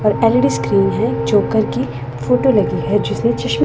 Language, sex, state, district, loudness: Hindi, female, Punjab, Pathankot, -16 LUFS